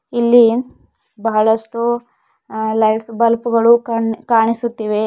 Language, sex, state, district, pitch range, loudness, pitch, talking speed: Kannada, female, Karnataka, Bidar, 220-235 Hz, -15 LUFS, 230 Hz, 95 wpm